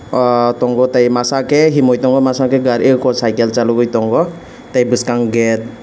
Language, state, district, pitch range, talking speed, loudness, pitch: Kokborok, Tripura, West Tripura, 120-130 Hz, 165 wpm, -13 LUFS, 125 Hz